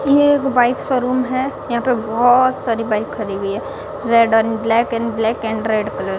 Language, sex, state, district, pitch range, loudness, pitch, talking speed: Hindi, female, Odisha, Sambalpur, 220-255 Hz, -17 LUFS, 230 Hz, 215 wpm